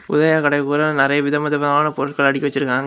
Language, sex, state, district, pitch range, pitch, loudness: Tamil, male, Tamil Nadu, Kanyakumari, 140-150 Hz, 145 Hz, -17 LUFS